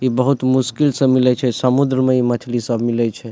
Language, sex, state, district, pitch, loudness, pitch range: Maithili, male, Bihar, Supaul, 125 Hz, -17 LUFS, 120-130 Hz